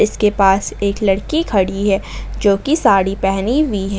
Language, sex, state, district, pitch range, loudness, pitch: Hindi, female, Jharkhand, Ranchi, 195-215 Hz, -16 LUFS, 200 Hz